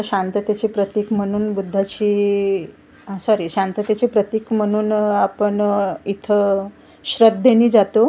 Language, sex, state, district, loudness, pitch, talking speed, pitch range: Marathi, female, Maharashtra, Gondia, -18 LUFS, 210 Hz, 105 wpm, 200-215 Hz